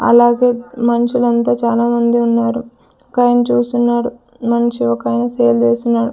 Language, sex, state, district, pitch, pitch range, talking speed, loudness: Telugu, female, Andhra Pradesh, Sri Satya Sai, 235 Hz, 235-245 Hz, 105 wpm, -15 LUFS